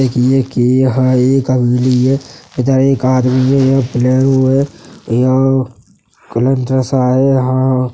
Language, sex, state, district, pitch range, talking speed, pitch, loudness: Hindi, male, Uttar Pradesh, Hamirpur, 125-135 Hz, 90 wpm, 130 Hz, -13 LUFS